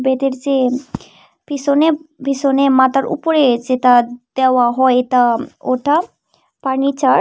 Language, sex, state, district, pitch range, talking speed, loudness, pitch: Bengali, female, Tripura, Unakoti, 255-280 Hz, 110 wpm, -15 LUFS, 265 Hz